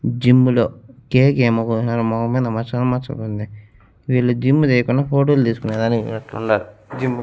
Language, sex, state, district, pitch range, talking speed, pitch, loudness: Telugu, male, Andhra Pradesh, Annamaya, 110-130 Hz, 150 wpm, 120 Hz, -18 LUFS